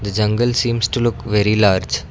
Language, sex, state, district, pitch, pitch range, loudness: English, male, Karnataka, Bangalore, 105 Hz, 100-120 Hz, -17 LUFS